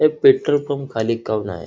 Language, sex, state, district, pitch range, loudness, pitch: Marathi, male, Maharashtra, Nagpur, 110-145 Hz, -19 LUFS, 135 Hz